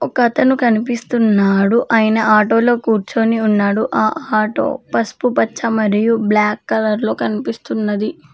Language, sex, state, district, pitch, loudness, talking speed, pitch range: Telugu, female, Telangana, Mahabubabad, 220 Hz, -15 LUFS, 100 wpm, 210-235 Hz